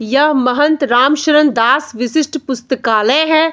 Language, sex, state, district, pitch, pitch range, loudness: Hindi, female, Bihar, Samastipur, 285 Hz, 250-305 Hz, -13 LUFS